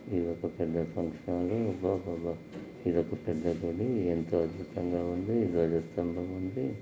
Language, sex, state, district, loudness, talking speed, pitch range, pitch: Telugu, male, Telangana, Nalgonda, -32 LUFS, 115 wpm, 85-95 Hz, 85 Hz